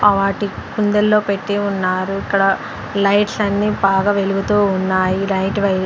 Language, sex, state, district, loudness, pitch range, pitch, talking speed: Telugu, female, Andhra Pradesh, Sri Satya Sai, -17 LUFS, 195-205 Hz, 200 Hz, 135 wpm